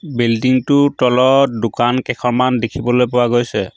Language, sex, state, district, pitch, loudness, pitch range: Assamese, male, Assam, Sonitpur, 125 Hz, -15 LUFS, 120-130 Hz